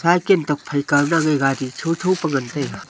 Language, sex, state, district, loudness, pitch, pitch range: Wancho, female, Arunachal Pradesh, Longding, -19 LUFS, 150 Hz, 140-165 Hz